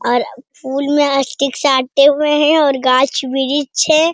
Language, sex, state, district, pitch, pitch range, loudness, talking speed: Hindi, female, Bihar, Jamui, 275 Hz, 265-295 Hz, -14 LUFS, 175 wpm